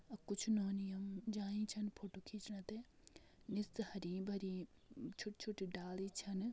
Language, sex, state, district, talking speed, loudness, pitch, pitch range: Garhwali, female, Uttarakhand, Tehri Garhwal, 135 wpm, -46 LUFS, 200 Hz, 195-215 Hz